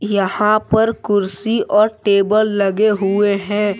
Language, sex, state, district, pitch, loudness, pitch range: Hindi, male, Jharkhand, Deoghar, 210 Hz, -16 LUFS, 200-215 Hz